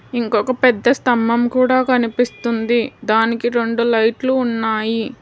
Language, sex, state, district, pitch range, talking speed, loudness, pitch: Telugu, female, Telangana, Hyderabad, 225-250 Hz, 105 wpm, -17 LUFS, 235 Hz